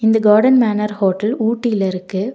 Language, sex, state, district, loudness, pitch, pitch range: Tamil, female, Tamil Nadu, Nilgiris, -16 LUFS, 215 Hz, 200-225 Hz